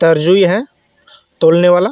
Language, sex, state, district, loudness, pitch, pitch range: Hindi, male, Jharkhand, Garhwa, -11 LUFS, 180 Hz, 165-190 Hz